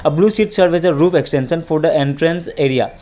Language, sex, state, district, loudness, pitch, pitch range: English, male, Assam, Kamrup Metropolitan, -15 LUFS, 165 Hz, 145-180 Hz